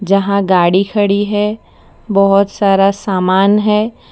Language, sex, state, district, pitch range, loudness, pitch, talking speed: Hindi, female, Gujarat, Valsad, 195-205 Hz, -13 LUFS, 200 Hz, 115 wpm